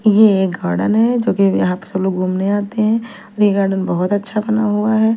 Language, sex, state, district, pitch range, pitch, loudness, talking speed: Hindi, female, Punjab, Fazilka, 190-220 Hz, 205 Hz, -16 LUFS, 230 wpm